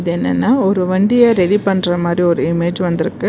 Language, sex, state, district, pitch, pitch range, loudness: Tamil, female, Karnataka, Bangalore, 175 Hz, 170-190 Hz, -14 LUFS